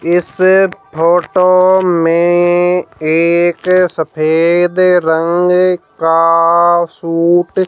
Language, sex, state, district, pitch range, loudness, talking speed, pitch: Hindi, female, Haryana, Jhajjar, 165-180 Hz, -11 LUFS, 70 wpm, 175 Hz